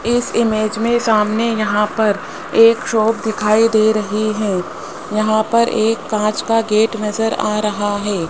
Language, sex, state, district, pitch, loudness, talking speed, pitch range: Hindi, male, Rajasthan, Jaipur, 215 Hz, -16 LUFS, 160 wpm, 210-225 Hz